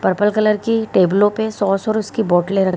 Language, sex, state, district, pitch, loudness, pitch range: Hindi, female, Bihar, Kishanganj, 205 Hz, -17 LUFS, 195-220 Hz